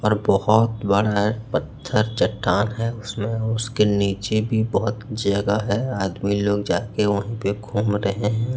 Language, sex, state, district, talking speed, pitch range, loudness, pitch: Hindi, male, Chhattisgarh, Raipur, 145 wpm, 100-110 Hz, -22 LUFS, 105 Hz